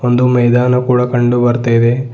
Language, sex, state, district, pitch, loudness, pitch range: Kannada, male, Karnataka, Bidar, 125 Hz, -12 LUFS, 120-125 Hz